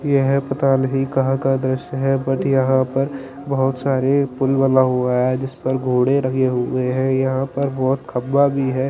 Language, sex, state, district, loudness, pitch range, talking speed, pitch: Hindi, male, Chandigarh, Chandigarh, -19 LUFS, 130-135 Hz, 190 wpm, 135 Hz